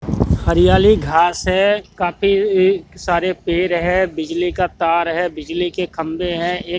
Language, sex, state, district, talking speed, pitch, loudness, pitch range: Hindi, male, Haryana, Jhajjar, 150 wpm, 175 Hz, -17 LUFS, 165-185 Hz